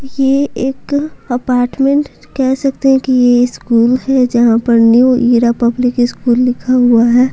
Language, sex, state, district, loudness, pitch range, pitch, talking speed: Hindi, female, Bihar, Patna, -12 LUFS, 240-270 Hz, 250 Hz, 155 wpm